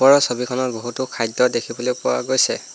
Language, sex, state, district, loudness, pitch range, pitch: Assamese, male, Assam, Hailakandi, -20 LUFS, 120-130 Hz, 125 Hz